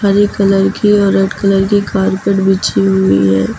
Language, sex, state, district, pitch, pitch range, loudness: Hindi, female, Uttar Pradesh, Lucknow, 195 Hz, 185-200 Hz, -12 LUFS